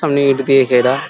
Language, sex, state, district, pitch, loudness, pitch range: Bengali, male, West Bengal, Jhargram, 135 Hz, -13 LUFS, 130-140 Hz